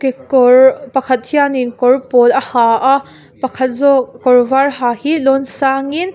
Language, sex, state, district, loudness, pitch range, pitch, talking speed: Mizo, female, Mizoram, Aizawl, -12 LUFS, 250-275 Hz, 265 Hz, 155 wpm